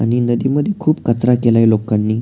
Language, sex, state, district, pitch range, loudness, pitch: Marathi, male, Maharashtra, Pune, 115-130 Hz, -15 LUFS, 120 Hz